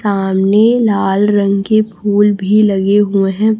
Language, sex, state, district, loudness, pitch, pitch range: Hindi, female, Chhattisgarh, Raipur, -12 LUFS, 205 Hz, 195-215 Hz